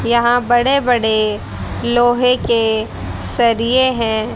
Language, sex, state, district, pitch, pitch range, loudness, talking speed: Hindi, female, Haryana, Jhajjar, 235 Hz, 225-245 Hz, -15 LUFS, 80 wpm